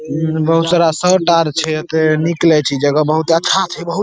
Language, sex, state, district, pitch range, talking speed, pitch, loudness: Maithili, male, Bihar, Saharsa, 155-170 Hz, 225 wpm, 160 Hz, -14 LUFS